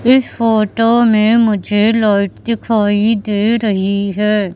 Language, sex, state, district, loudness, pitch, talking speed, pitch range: Hindi, female, Madhya Pradesh, Katni, -13 LUFS, 215 Hz, 120 wpm, 205-230 Hz